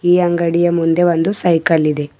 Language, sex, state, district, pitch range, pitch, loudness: Kannada, female, Karnataka, Bidar, 165-175 Hz, 170 Hz, -15 LUFS